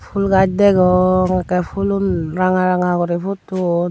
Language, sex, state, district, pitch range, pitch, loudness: Chakma, female, Tripura, Dhalai, 180-195 Hz, 185 Hz, -16 LUFS